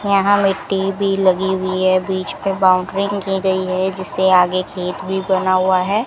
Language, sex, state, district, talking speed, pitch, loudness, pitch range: Hindi, female, Rajasthan, Bikaner, 185 wpm, 190 Hz, -17 LUFS, 185-195 Hz